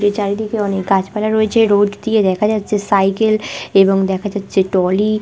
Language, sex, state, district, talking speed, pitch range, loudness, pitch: Bengali, female, West Bengal, Malda, 160 wpm, 195-215 Hz, -15 LUFS, 205 Hz